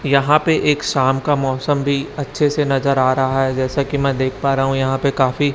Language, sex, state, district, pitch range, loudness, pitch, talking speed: Hindi, male, Chhattisgarh, Raipur, 135-145 Hz, -17 LUFS, 140 Hz, 250 wpm